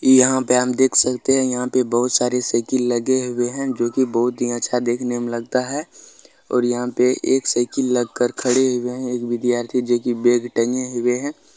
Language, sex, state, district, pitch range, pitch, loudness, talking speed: Bhojpuri, male, Bihar, Saran, 120-130 Hz, 125 Hz, -19 LUFS, 220 wpm